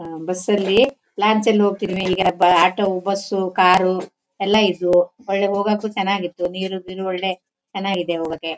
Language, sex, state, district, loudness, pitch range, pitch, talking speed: Kannada, female, Karnataka, Shimoga, -19 LUFS, 180-200 Hz, 190 Hz, 145 wpm